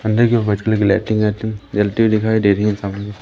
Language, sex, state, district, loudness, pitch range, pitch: Hindi, male, Madhya Pradesh, Umaria, -17 LUFS, 100-110 Hz, 105 Hz